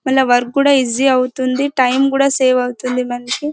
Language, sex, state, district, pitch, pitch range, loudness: Telugu, female, Karnataka, Bellary, 260 Hz, 250-275 Hz, -15 LUFS